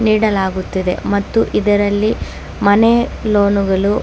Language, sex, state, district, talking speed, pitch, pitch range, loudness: Kannada, female, Karnataka, Dakshina Kannada, 105 wpm, 205 Hz, 195-215 Hz, -15 LUFS